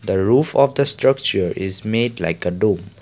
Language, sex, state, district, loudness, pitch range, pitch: English, male, Assam, Kamrup Metropolitan, -18 LUFS, 95-135 Hz, 110 Hz